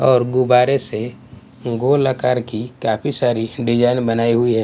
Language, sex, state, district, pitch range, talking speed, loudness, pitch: Hindi, male, Bihar, West Champaran, 115-125 Hz, 155 wpm, -18 LUFS, 120 Hz